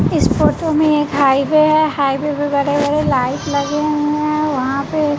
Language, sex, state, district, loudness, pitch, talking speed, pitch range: Hindi, female, Bihar, West Champaran, -16 LUFS, 295 Hz, 185 wpm, 285-300 Hz